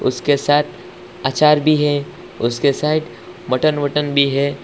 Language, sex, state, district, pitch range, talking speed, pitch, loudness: Hindi, male, Assam, Hailakandi, 140-150 Hz, 140 wpm, 145 Hz, -17 LUFS